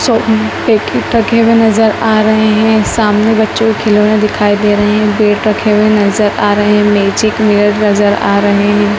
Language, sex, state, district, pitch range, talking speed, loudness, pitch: Hindi, female, Madhya Pradesh, Dhar, 205-220 Hz, 200 wpm, -10 LUFS, 215 Hz